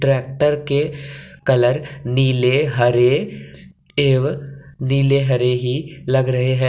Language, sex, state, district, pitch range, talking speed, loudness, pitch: Hindi, male, Jharkhand, Deoghar, 125-140 Hz, 110 wpm, -18 LUFS, 135 Hz